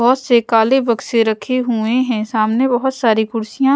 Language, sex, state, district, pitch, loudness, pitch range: Hindi, female, Punjab, Pathankot, 235 Hz, -16 LUFS, 225-255 Hz